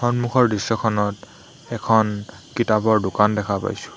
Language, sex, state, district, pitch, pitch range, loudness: Assamese, male, Assam, Hailakandi, 110 Hz, 105-120 Hz, -20 LUFS